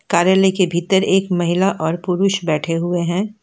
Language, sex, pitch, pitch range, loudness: Hindi, female, 180 Hz, 170-190 Hz, -17 LUFS